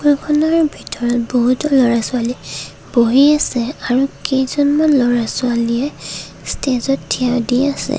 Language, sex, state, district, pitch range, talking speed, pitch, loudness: Assamese, female, Assam, Kamrup Metropolitan, 240-285 Hz, 100 wpm, 260 Hz, -16 LUFS